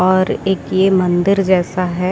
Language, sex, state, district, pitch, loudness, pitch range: Hindi, female, Bihar, Saran, 185 Hz, -15 LUFS, 180-190 Hz